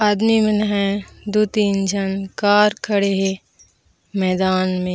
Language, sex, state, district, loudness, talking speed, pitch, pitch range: Chhattisgarhi, female, Chhattisgarh, Raigarh, -19 LUFS, 135 wpm, 200 Hz, 195-210 Hz